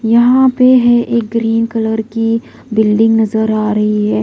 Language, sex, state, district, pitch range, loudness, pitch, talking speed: Hindi, female, Odisha, Malkangiri, 220-235 Hz, -12 LUFS, 225 Hz, 170 wpm